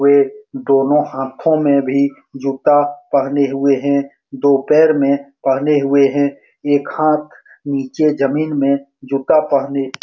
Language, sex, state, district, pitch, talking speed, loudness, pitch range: Hindi, male, Bihar, Saran, 140 Hz, 140 wpm, -16 LUFS, 140-145 Hz